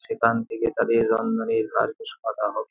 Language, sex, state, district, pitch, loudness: Bengali, male, West Bengal, Jhargram, 115 Hz, -24 LUFS